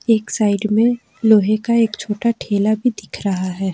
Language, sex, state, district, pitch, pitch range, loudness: Hindi, female, Jharkhand, Ranchi, 215 Hz, 205-230 Hz, -18 LUFS